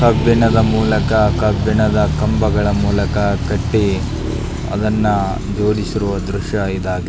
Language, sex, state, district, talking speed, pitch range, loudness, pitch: Kannada, male, Karnataka, Belgaum, 85 wpm, 100-110 Hz, -16 LUFS, 105 Hz